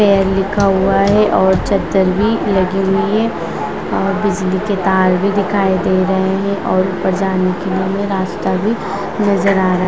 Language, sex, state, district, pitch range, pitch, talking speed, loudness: Hindi, female, Bihar, Vaishali, 190-200 Hz, 195 Hz, 175 wpm, -15 LUFS